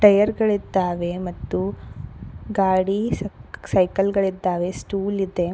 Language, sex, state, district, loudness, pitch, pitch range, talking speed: Kannada, female, Karnataka, Koppal, -22 LUFS, 185 Hz, 160-195 Hz, 100 wpm